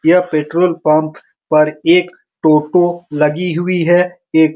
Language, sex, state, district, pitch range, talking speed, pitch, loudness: Hindi, male, Bihar, Supaul, 155-180 Hz, 145 wpm, 165 Hz, -14 LUFS